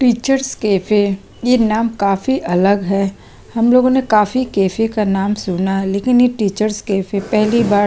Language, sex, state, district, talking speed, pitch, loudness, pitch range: Hindi, female, Chhattisgarh, Sukma, 160 wpm, 210 Hz, -16 LUFS, 195-240 Hz